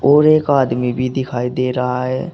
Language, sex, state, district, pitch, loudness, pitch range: Hindi, male, Uttar Pradesh, Saharanpur, 130 Hz, -16 LUFS, 125-140 Hz